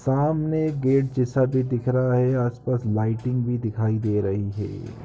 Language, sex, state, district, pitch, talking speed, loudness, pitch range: Hindi, male, Uttar Pradesh, Ghazipur, 125 Hz, 180 wpm, -23 LUFS, 110-130 Hz